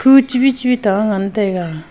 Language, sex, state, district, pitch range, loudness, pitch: Wancho, female, Arunachal Pradesh, Longding, 195-255 Hz, -15 LUFS, 215 Hz